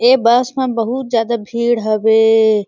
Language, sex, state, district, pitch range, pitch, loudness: Surgujia, female, Chhattisgarh, Sarguja, 220-245 Hz, 235 Hz, -14 LUFS